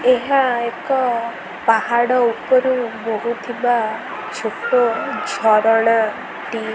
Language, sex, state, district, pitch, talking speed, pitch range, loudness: Odia, female, Odisha, Khordha, 235 Hz, 70 wpm, 225-255 Hz, -18 LUFS